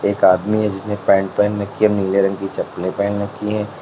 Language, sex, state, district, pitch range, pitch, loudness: Hindi, male, Uttar Pradesh, Lalitpur, 100-105 Hz, 100 Hz, -18 LUFS